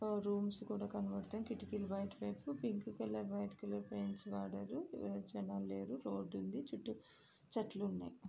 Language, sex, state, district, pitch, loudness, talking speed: Telugu, female, Andhra Pradesh, Srikakulam, 195 Hz, -44 LUFS, 145 wpm